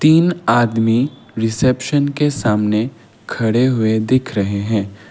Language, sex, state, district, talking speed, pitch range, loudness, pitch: Hindi, male, Assam, Kamrup Metropolitan, 115 wpm, 110-130 Hz, -17 LUFS, 115 Hz